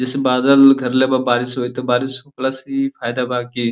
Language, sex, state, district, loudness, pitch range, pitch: Bhojpuri, male, Uttar Pradesh, Deoria, -17 LUFS, 125-135 Hz, 130 Hz